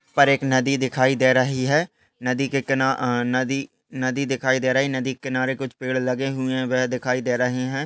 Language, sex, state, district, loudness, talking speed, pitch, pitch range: Hindi, male, Maharashtra, Aurangabad, -22 LUFS, 215 wpm, 130 Hz, 130-135 Hz